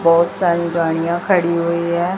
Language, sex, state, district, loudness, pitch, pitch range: Hindi, male, Chhattisgarh, Raipur, -17 LUFS, 170 Hz, 170-175 Hz